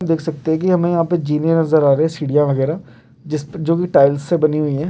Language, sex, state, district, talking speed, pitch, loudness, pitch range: Hindi, male, Uttarakhand, Uttarkashi, 280 wpm, 155 Hz, -17 LUFS, 145-165 Hz